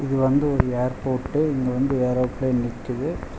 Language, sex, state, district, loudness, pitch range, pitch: Tamil, male, Tamil Nadu, Chennai, -23 LUFS, 125-135 Hz, 130 Hz